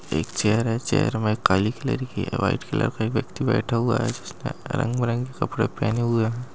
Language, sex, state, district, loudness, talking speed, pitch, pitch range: Angika, male, Bihar, Madhepura, -24 LUFS, 220 wpm, 120 Hz, 110-130 Hz